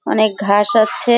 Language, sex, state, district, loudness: Bengali, female, West Bengal, Jhargram, -14 LUFS